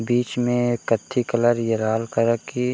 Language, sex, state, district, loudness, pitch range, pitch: Hindi, male, Bihar, Gopalganj, -22 LUFS, 115-120 Hz, 120 Hz